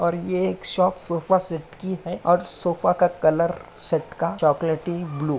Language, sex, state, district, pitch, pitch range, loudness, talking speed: Hindi, male, Uttar Pradesh, Muzaffarnagar, 170 Hz, 165-180 Hz, -23 LUFS, 190 wpm